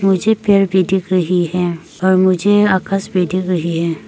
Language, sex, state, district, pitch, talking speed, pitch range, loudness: Hindi, female, Arunachal Pradesh, Papum Pare, 185 Hz, 190 wpm, 180-195 Hz, -15 LUFS